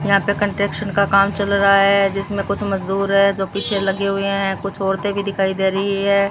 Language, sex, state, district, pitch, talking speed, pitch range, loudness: Hindi, female, Rajasthan, Bikaner, 200 Hz, 230 wpm, 195-200 Hz, -18 LUFS